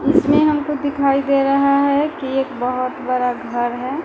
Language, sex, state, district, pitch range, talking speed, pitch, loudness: Hindi, female, Bihar, Patna, 255-285 Hz, 190 wpm, 275 Hz, -18 LUFS